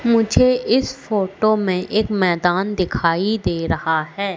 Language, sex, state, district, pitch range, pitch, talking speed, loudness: Hindi, female, Madhya Pradesh, Katni, 175-215 Hz, 195 Hz, 135 wpm, -19 LUFS